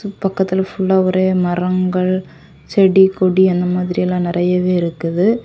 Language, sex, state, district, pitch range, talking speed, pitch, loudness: Tamil, female, Tamil Nadu, Kanyakumari, 180-190 Hz, 110 wpm, 185 Hz, -16 LUFS